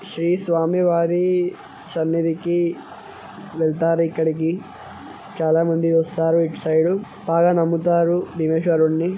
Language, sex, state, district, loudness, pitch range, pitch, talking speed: Telugu, male, Telangana, Karimnagar, -20 LUFS, 165-175 Hz, 165 Hz, 90 wpm